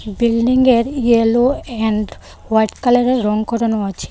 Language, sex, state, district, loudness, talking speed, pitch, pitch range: Bengali, female, Tripura, West Tripura, -16 LUFS, 145 wpm, 230 Hz, 220-245 Hz